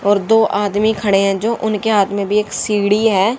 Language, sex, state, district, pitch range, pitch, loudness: Hindi, female, Haryana, Jhajjar, 200-220 Hz, 210 Hz, -15 LUFS